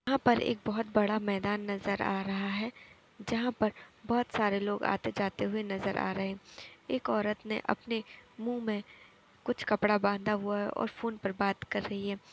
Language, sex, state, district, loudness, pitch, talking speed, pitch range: Hindi, female, Uttar Pradesh, Etah, -32 LUFS, 210 Hz, 195 wpm, 200-225 Hz